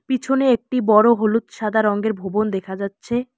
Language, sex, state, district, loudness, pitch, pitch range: Bengali, male, West Bengal, Alipurduar, -19 LUFS, 220 Hz, 210-245 Hz